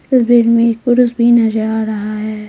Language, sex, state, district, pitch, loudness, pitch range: Hindi, female, Bihar, Patna, 230 Hz, -13 LUFS, 220-240 Hz